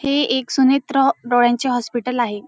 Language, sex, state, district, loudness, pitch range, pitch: Marathi, female, Maharashtra, Dhule, -18 LUFS, 240-270 Hz, 250 Hz